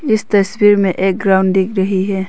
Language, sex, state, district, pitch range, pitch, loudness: Hindi, female, Arunachal Pradesh, Longding, 190-205 Hz, 195 Hz, -14 LUFS